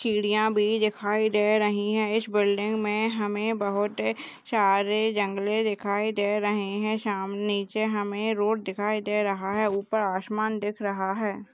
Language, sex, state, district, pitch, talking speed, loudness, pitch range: Hindi, female, Bihar, Jahanabad, 210 Hz, 155 wpm, -26 LUFS, 205-215 Hz